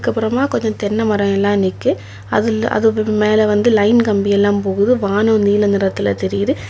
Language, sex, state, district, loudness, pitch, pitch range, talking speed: Tamil, female, Tamil Nadu, Kanyakumari, -15 LUFS, 205 Hz, 200-220 Hz, 160 wpm